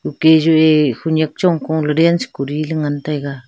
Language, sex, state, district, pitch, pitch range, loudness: Wancho, female, Arunachal Pradesh, Longding, 155 Hz, 145-160 Hz, -15 LUFS